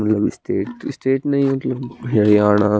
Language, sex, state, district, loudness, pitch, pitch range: Hindi, male, Chandigarh, Chandigarh, -19 LUFS, 120 Hz, 105-135 Hz